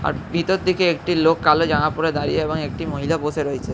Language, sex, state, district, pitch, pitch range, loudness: Bengali, male, West Bengal, Jhargram, 160 Hz, 150-165 Hz, -20 LUFS